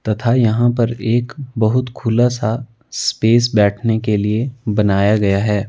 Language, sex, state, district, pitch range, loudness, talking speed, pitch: Hindi, male, Himachal Pradesh, Shimla, 105-120 Hz, -16 LUFS, 145 wpm, 115 Hz